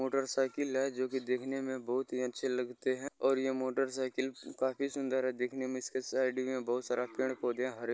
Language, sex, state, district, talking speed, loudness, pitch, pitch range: Maithili, male, Bihar, Bhagalpur, 205 wpm, -35 LUFS, 130 Hz, 125-135 Hz